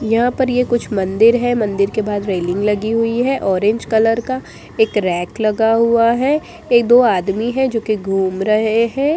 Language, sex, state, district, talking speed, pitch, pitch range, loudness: Hindi, female, Bihar, Jamui, 205 wpm, 225 Hz, 205-240 Hz, -16 LUFS